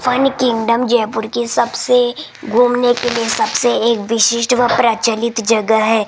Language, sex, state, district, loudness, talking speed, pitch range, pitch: Hindi, female, Rajasthan, Jaipur, -15 LUFS, 150 wpm, 225-245 Hz, 235 Hz